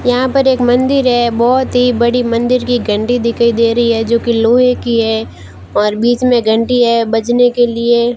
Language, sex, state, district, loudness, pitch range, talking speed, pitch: Hindi, female, Rajasthan, Barmer, -12 LUFS, 230-245 Hz, 215 wpm, 235 Hz